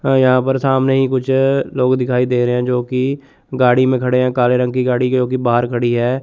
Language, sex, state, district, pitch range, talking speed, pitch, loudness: Hindi, male, Chandigarh, Chandigarh, 125-130 Hz, 230 wpm, 125 Hz, -15 LUFS